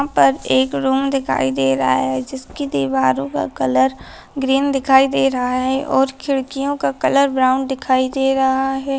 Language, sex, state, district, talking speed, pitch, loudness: Hindi, female, Bihar, Darbhanga, 175 wpm, 260 Hz, -17 LUFS